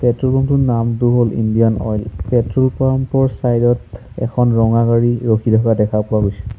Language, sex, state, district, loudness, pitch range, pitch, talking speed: Assamese, male, Assam, Sonitpur, -15 LUFS, 110-125 Hz, 115 Hz, 190 wpm